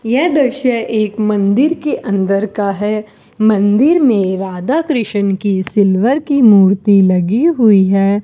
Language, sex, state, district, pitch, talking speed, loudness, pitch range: Hindi, female, Rajasthan, Bikaner, 210 Hz, 130 wpm, -13 LUFS, 195-250 Hz